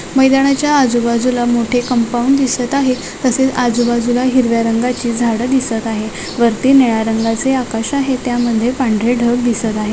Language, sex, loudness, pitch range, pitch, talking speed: Marathi, female, -14 LUFS, 235-260 Hz, 245 Hz, 140 wpm